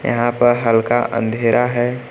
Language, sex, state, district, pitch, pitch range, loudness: Hindi, male, Uttar Pradesh, Lucknow, 120 Hz, 115-120 Hz, -16 LUFS